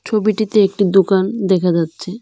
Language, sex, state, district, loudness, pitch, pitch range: Bengali, female, Tripura, Dhalai, -15 LUFS, 195 Hz, 185-215 Hz